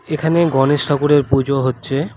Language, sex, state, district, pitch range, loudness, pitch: Bengali, male, West Bengal, Alipurduar, 135-155 Hz, -16 LUFS, 145 Hz